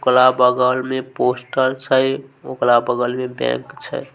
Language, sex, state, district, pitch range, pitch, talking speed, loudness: Maithili, male, Bihar, Samastipur, 125-130 Hz, 130 Hz, 145 wpm, -18 LUFS